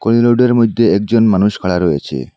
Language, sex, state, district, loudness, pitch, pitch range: Bengali, male, Assam, Hailakandi, -13 LUFS, 110 Hz, 90-115 Hz